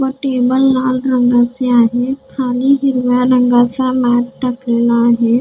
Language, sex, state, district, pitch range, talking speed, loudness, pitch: Marathi, female, Maharashtra, Gondia, 240-260 Hz, 120 wpm, -13 LUFS, 250 Hz